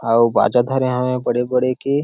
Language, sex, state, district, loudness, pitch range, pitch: Chhattisgarhi, male, Chhattisgarh, Sarguja, -18 LUFS, 120-130 Hz, 125 Hz